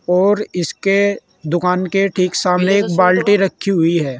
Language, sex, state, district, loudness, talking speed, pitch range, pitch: Hindi, male, Uttar Pradesh, Saharanpur, -15 LUFS, 155 wpm, 175-195 Hz, 185 Hz